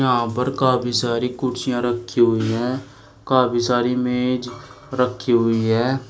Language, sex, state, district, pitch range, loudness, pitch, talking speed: Hindi, male, Uttar Pradesh, Shamli, 120-125 Hz, -20 LUFS, 125 Hz, 140 wpm